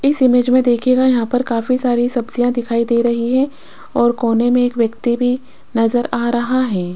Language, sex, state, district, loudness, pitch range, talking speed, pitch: Hindi, female, Rajasthan, Jaipur, -16 LUFS, 235-255 Hz, 200 wpm, 245 Hz